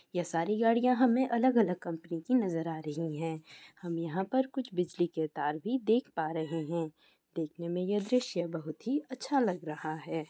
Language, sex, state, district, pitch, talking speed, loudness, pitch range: Hindi, female, Goa, North and South Goa, 175 Hz, 200 wpm, -32 LUFS, 165-240 Hz